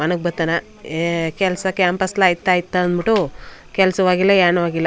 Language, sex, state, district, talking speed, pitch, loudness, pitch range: Kannada, female, Karnataka, Chamarajanagar, 185 wpm, 180 Hz, -18 LUFS, 170-190 Hz